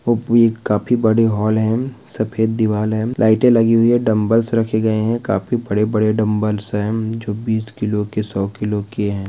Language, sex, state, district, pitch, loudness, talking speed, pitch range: Hindi, male, Chhattisgarh, Balrampur, 110 Hz, -17 LUFS, 170 wpm, 105-115 Hz